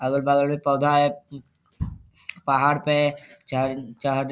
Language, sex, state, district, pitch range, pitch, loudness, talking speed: Hindi, male, Bihar, Saharsa, 135-145 Hz, 140 Hz, -22 LUFS, 125 wpm